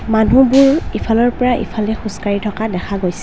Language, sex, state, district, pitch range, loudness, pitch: Assamese, female, Assam, Kamrup Metropolitan, 205-245 Hz, -15 LUFS, 220 Hz